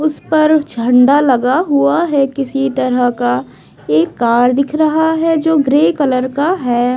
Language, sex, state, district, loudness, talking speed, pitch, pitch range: Hindi, female, Bihar, West Champaran, -13 LUFS, 165 wpm, 275 Hz, 245-310 Hz